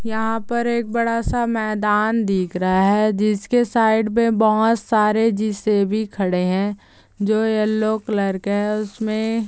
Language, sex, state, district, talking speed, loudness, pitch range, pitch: Hindi, female, Chhattisgarh, Balrampur, 145 wpm, -19 LUFS, 205-225 Hz, 215 Hz